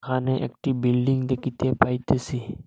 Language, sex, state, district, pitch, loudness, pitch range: Bengali, male, Assam, Hailakandi, 130 Hz, -24 LUFS, 125-130 Hz